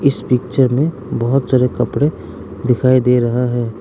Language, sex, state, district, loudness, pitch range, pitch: Hindi, male, Arunachal Pradesh, Lower Dibang Valley, -16 LUFS, 120-130 Hz, 125 Hz